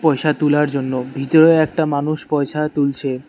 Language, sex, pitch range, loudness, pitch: Bengali, male, 140-155 Hz, -17 LUFS, 150 Hz